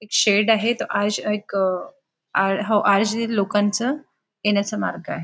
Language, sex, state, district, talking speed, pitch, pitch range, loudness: Marathi, female, Maharashtra, Nagpur, 80 wpm, 210 Hz, 200-225 Hz, -21 LUFS